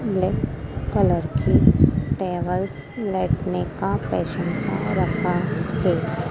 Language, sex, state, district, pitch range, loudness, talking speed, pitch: Hindi, female, Madhya Pradesh, Dhar, 165-185 Hz, -22 LUFS, 95 wpm, 175 Hz